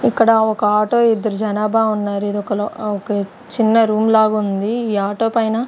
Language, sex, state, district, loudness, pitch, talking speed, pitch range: Telugu, female, Andhra Pradesh, Sri Satya Sai, -17 LUFS, 215 Hz, 160 wpm, 205-225 Hz